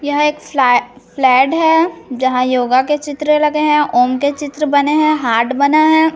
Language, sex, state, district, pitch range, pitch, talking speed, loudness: Hindi, female, Chhattisgarh, Raipur, 260-305 Hz, 290 Hz, 185 wpm, -14 LUFS